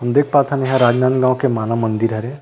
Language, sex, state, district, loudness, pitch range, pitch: Chhattisgarhi, male, Chhattisgarh, Rajnandgaon, -16 LUFS, 115-135 Hz, 130 Hz